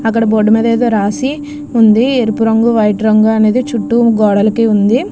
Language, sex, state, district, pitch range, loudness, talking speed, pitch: Telugu, female, Andhra Pradesh, Krishna, 215-235 Hz, -11 LUFS, 150 wpm, 225 Hz